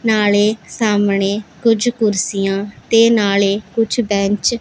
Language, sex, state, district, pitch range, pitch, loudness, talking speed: Punjabi, female, Punjab, Pathankot, 200-225 Hz, 210 Hz, -16 LUFS, 115 wpm